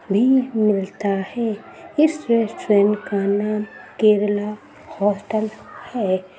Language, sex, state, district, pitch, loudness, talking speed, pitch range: Hindi, female, Uttar Pradesh, Budaun, 210 Hz, -20 LUFS, 95 wpm, 200-230 Hz